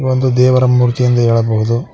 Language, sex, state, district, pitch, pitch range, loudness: Kannada, male, Karnataka, Koppal, 125 Hz, 115-130 Hz, -12 LUFS